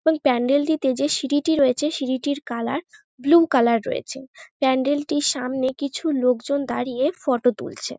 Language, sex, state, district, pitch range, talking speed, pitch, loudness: Bengali, female, West Bengal, North 24 Parganas, 260-295 Hz, 145 wpm, 280 Hz, -22 LUFS